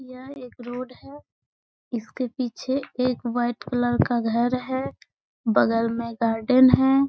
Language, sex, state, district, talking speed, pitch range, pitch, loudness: Hindi, female, Bihar, Gaya, 135 wpm, 235-260 Hz, 250 Hz, -24 LUFS